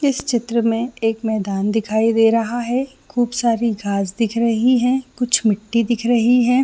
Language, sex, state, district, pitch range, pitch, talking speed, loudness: Hindi, female, Jharkhand, Jamtara, 225-245 Hz, 235 Hz, 160 wpm, -18 LUFS